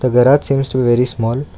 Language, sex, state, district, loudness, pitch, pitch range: English, male, Karnataka, Bangalore, -14 LUFS, 125 Hz, 120-135 Hz